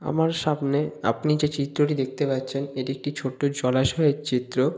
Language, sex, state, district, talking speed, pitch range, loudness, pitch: Bengali, male, West Bengal, Malda, 150 wpm, 130-150 Hz, -25 LUFS, 140 Hz